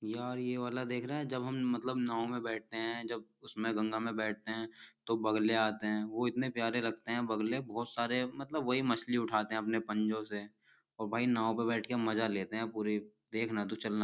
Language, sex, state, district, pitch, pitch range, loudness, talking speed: Hindi, male, Uttar Pradesh, Jyotiba Phule Nagar, 115 Hz, 110-120 Hz, -35 LUFS, 220 wpm